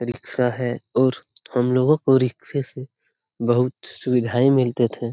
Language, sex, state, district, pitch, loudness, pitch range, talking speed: Hindi, male, Bihar, Lakhisarai, 125 Hz, -21 LUFS, 120-130 Hz, 140 wpm